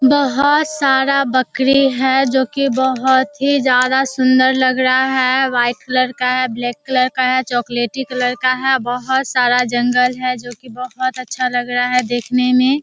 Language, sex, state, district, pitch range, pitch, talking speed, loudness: Hindi, female, Bihar, Kishanganj, 250-265 Hz, 255 Hz, 180 wpm, -15 LUFS